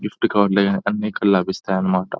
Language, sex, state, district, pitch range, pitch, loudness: Telugu, male, Telangana, Nalgonda, 95-100 Hz, 100 Hz, -19 LUFS